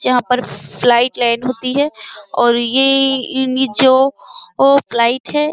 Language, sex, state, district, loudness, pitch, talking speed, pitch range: Hindi, female, Uttar Pradesh, Jyotiba Phule Nagar, -14 LUFS, 255 Hz, 120 wpm, 240-270 Hz